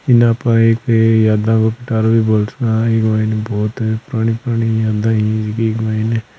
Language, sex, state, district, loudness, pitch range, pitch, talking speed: Hindi, male, Rajasthan, Churu, -15 LUFS, 110-115 Hz, 110 Hz, 190 wpm